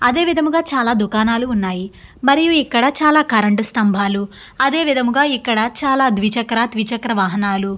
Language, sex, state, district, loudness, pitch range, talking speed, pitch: Telugu, female, Andhra Pradesh, Guntur, -16 LUFS, 210-275 Hz, 140 wpm, 235 Hz